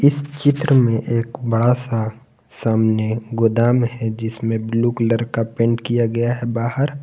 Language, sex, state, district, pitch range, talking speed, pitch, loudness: Hindi, male, Jharkhand, Palamu, 115-125 Hz, 155 wpm, 115 Hz, -19 LUFS